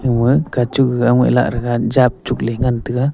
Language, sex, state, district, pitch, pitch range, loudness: Wancho, male, Arunachal Pradesh, Longding, 125 Hz, 120-130 Hz, -16 LUFS